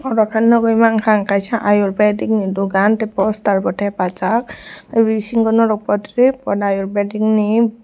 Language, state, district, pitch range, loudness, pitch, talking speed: Kokborok, Tripura, West Tripura, 200-225 Hz, -16 LUFS, 215 Hz, 140 wpm